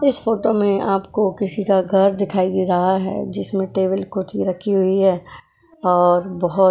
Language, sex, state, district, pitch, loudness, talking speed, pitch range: Hindi, female, Goa, North and South Goa, 195 Hz, -19 LUFS, 180 wpm, 185-200 Hz